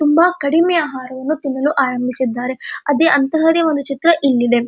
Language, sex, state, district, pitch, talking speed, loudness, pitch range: Kannada, female, Karnataka, Dharwad, 285 Hz, 130 wpm, -16 LUFS, 260-320 Hz